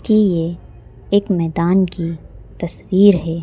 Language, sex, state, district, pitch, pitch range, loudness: Hindi, female, Madhya Pradesh, Bhopal, 170 Hz, 165-190 Hz, -17 LUFS